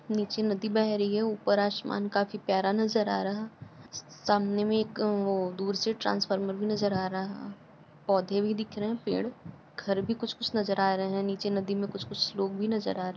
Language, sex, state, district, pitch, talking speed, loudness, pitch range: Hindi, female, Uttar Pradesh, Etah, 205 Hz, 215 wpm, -30 LUFS, 195-215 Hz